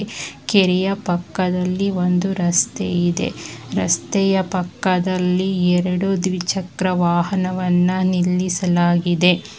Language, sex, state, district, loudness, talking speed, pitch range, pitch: Kannada, female, Karnataka, Bangalore, -19 LUFS, 65 wpm, 180-190 Hz, 180 Hz